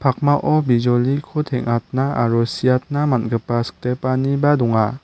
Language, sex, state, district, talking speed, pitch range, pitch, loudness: Garo, male, Meghalaya, West Garo Hills, 95 wpm, 120-140 Hz, 130 Hz, -19 LUFS